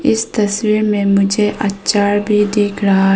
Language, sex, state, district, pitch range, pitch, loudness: Hindi, female, Arunachal Pradesh, Papum Pare, 200-210 Hz, 205 Hz, -15 LUFS